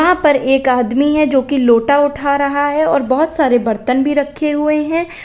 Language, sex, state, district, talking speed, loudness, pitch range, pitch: Hindi, female, Uttar Pradesh, Lalitpur, 215 wpm, -14 LUFS, 260-300 Hz, 285 Hz